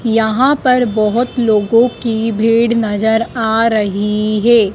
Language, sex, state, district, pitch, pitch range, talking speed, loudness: Hindi, female, Madhya Pradesh, Dhar, 225 Hz, 215-235 Hz, 125 wpm, -13 LUFS